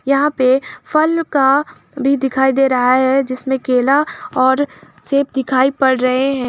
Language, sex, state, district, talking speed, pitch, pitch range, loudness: Hindi, female, Jharkhand, Garhwa, 155 wpm, 265 Hz, 260-280 Hz, -15 LUFS